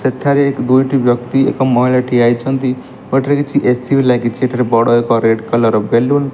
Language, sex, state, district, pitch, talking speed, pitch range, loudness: Odia, male, Odisha, Malkangiri, 125 Hz, 190 wpm, 120-135 Hz, -13 LUFS